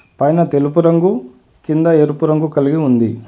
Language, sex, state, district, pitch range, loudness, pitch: Telugu, male, Telangana, Adilabad, 125-160 Hz, -14 LUFS, 150 Hz